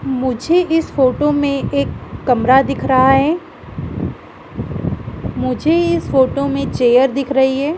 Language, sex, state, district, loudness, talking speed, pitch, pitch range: Hindi, female, Madhya Pradesh, Dhar, -16 LUFS, 130 wpm, 265 Hz, 245-295 Hz